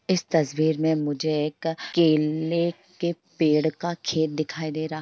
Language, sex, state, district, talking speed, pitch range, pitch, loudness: Hindi, female, Bihar, Jamui, 165 wpm, 155-170 Hz, 160 Hz, -25 LUFS